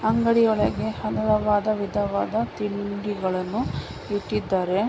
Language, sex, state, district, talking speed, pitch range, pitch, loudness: Kannada, female, Karnataka, Mysore, 85 wpm, 200-215 Hz, 205 Hz, -24 LUFS